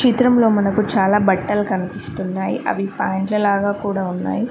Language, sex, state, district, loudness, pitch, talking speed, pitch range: Telugu, female, Telangana, Mahabubabad, -18 LUFS, 200 Hz, 135 wpm, 190-210 Hz